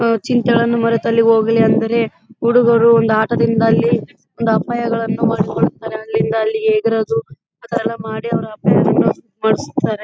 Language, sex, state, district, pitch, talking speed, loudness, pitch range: Kannada, female, Karnataka, Bellary, 225 Hz, 90 wpm, -16 LUFS, 220-230 Hz